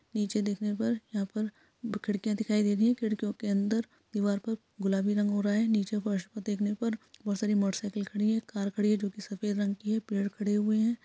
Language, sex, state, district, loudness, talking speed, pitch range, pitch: Hindi, female, Bihar, Saharsa, -31 LUFS, 245 wpm, 205-215 Hz, 210 Hz